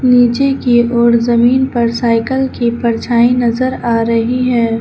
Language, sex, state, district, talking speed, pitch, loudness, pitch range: Hindi, female, Uttar Pradesh, Lucknow, 150 wpm, 240 Hz, -13 LUFS, 235-250 Hz